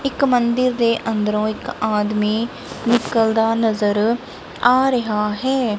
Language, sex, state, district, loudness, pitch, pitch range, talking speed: Punjabi, male, Punjab, Kapurthala, -19 LUFS, 225 Hz, 215-245 Hz, 115 wpm